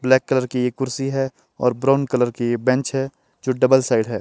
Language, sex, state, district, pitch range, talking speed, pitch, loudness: Hindi, male, Himachal Pradesh, Shimla, 125-135 Hz, 215 wpm, 130 Hz, -20 LUFS